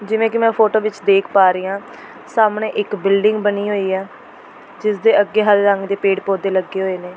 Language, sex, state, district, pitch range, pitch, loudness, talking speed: Punjabi, female, Delhi, New Delhi, 195-215 Hz, 200 Hz, -17 LUFS, 210 wpm